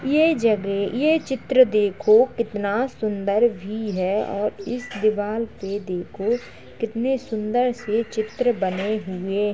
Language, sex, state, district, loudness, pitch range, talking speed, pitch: Hindi, female, Uttar Pradesh, Jalaun, -22 LUFS, 200-245 Hz, 130 wpm, 215 Hz